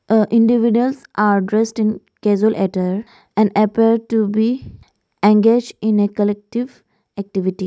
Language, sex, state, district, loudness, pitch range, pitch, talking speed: English, female, Arunachal Pradesh, Lower Dibang Valley, -17 LUFS, 205-230 Hz, 215 Hz, 125 wpm